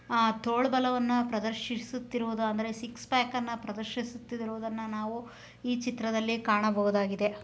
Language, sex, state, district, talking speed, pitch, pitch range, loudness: Kannada, female, Karnataka, Belgaum, 115 wpm, 230 Hz, 220-245 Hz, -31 LUFS